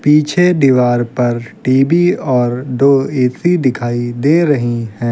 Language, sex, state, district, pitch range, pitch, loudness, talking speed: Hindi, male, Uttar Pradesh, Lucknow, 120-145 Hz, 130 Hz, -13 LUFS, 130 wpm